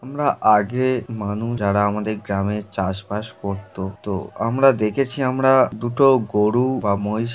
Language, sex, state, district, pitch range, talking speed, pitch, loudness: Bengali, male, West Bengal, Jhargram, 100-130 Hz, 130 wpm, 110 Hz, -20 LUFS